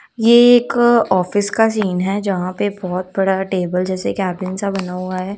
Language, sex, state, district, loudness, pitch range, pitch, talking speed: Hindi, female, Punjab, Kapurthala, -16 LUFS, 185-205 Hz, 195 Hz, 190 wpm